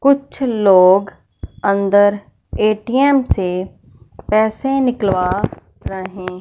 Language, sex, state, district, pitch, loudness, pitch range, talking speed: Hindi, female, Punjab, Fazilka, 200 Hz, -16 LUFS, 185-240 Hz, 75 wpm